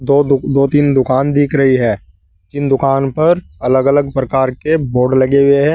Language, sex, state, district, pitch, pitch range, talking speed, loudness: Hindi, male, Uttar Pradesh, Saharanpur, 135 Hz, 130-145 Hz, 175 wpm, -13 LUFS